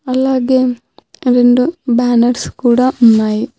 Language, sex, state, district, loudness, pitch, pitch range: Telugu, female, Telangana, Hyderabad, -12 LUFS, 250 Hz, 240-260 Hz